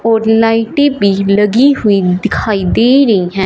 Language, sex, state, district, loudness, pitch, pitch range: Hindi, female, Punjab, Fazilka, -11 LUFS, 220 Hz, 200-230 Hz